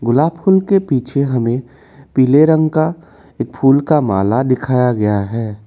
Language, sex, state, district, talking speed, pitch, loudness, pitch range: Hindi, male, Assam, Kamrup Metropolitan, 150 wpm, 130 Hz, -14 LUFS, 120-155 Hz